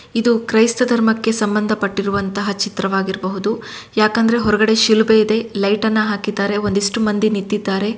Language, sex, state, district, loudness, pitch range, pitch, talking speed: Kannada, female, Karnataka, Shimoga, -17 LUFS, 200-220 Hz, 215 Hz, 115 wpm